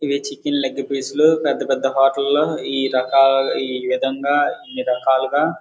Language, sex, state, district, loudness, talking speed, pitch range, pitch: Telugu, male, Andhra Pradesh, Guntur, -19 LUFS, 150 wpm, 135-145 Hz, 135 Hz